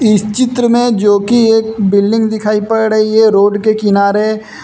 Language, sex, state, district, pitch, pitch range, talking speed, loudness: Hindi, male, Uttar Pradesh, Lucknow, 215 Hz, 205-225 Hz, 180 wpm, -11 LUFS